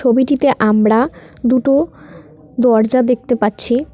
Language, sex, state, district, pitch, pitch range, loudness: Bengali, female, West Bengal, Cooch Behar, 250 Hz, 225-265 Hz, -14 LUFS